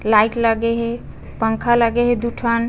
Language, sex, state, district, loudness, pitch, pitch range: Chhattisgarhi, female, Chhattisgarh, Bastar, -18 LUFS, 230 Hz, 225-235 Hz